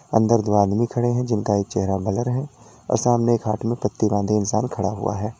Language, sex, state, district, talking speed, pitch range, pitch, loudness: Hindi, male, Uttar Pradesh, Lalitpur, 220 wpm, 105-120 Hz, 110 Hz, -21 LUFS